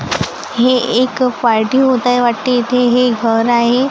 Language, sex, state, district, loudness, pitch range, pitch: Marathi, female, Maharashtra, Gondia, -13 LUFS, 235-255 Hz, 245 Hz